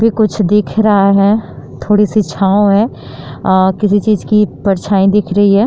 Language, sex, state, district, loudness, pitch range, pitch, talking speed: Hindi, female, Uttar Pradesh, Jyotiba Phule Nagar, -12 LUFS, 195-210 Hz, 205 Hz, 180 wpm